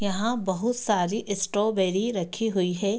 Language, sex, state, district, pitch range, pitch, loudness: Hindi, female, Bihar, Darbhanga, 190-225 Hz, 205 Hz, -26 LUFS